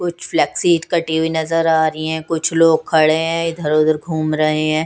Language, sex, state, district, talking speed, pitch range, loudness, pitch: Hindi, female, Odisha, Nuapada, 195 wpm, 155-165 Hz, -17 LUFS, 160 Hz